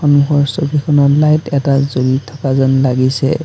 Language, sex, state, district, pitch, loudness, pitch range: Assamese, male, Assam, Sonitpur, 140 Hz, -13 LUFS, 135-150 Hz